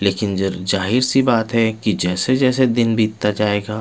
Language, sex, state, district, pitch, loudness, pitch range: Hindi, male, Bihar, Patna, 110 Hz, -18 LUFS, 100-120 Hz